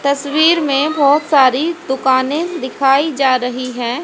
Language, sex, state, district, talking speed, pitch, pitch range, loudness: Hindi, female, Haryana, Rohtak, 135 wpm, 280 Hz, 260-305 Hz, -14 LUFS